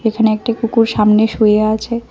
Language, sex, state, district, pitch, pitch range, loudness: Bengali, female, Tripura, West Tripura, 220 Hz, 215-230 Hz, -14 LUFS